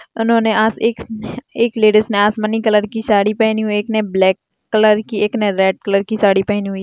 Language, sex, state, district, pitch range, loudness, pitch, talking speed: Hindi, female, Rajasthan, Churu, 205-220 Hz, -15 LUFS, 215 Hz, 210 wpm